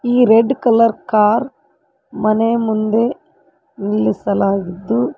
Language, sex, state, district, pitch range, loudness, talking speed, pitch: Kannada, female, Karnataka, Koppal, 210-245 Hz, -16 LUFS, 80 wpm, 225 Hz